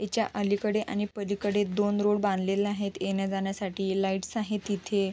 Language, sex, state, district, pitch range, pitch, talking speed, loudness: Marathi, female, Maharashtra, Sindhudurg, 195-205 Hz, 205 Hz, 150 wpm, -29 LUFS